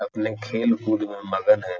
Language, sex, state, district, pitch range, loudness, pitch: Hindi, male, Uttar Pradesh, Etah, 100-115 Hz, -23 LUFS, 110 Hz